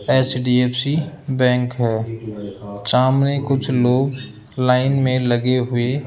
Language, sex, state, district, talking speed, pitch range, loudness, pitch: Hindi, male, Rajasthan, Jaipur, 110 wpm, 120-135 Hz, -18 LUFS, 125 Hz